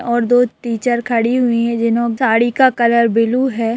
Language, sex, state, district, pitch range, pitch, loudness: Hindi, female, Bihar, Araria, 230-245 Hz, 235 Hz, -15 LUFS